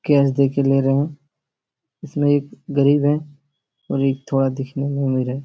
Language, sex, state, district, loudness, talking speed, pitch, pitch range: Hindi, male, Bihar, Supaul, -20 LUFS, 175 wpm, 140 Hz, 135-145 Hz